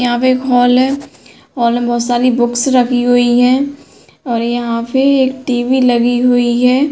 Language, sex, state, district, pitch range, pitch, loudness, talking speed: Hindi, female, Uttar Pradesh, Hamirpur, 240-260 Hz, 245 Hz, -13 LUFS, 180 wpm